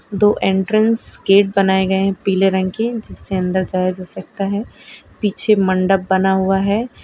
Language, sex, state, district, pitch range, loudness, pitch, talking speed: Hindi, female, Gujarat, Valsad, 190-205 Hz, -17 LUFS, 195 Hz, 170 wpm